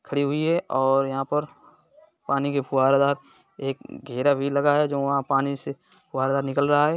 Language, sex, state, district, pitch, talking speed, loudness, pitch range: Hindi, male, Bihar, East Champaran, 140 Hz, 190 wpm, -24 LUFS, 135-145 Hz